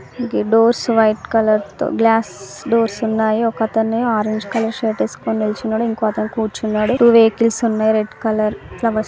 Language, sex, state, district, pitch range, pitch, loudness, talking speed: Telugu, female, Telangana, Karimnagar, 215-230 Hz, 220 Hz, -17 LUFS, 145 wpm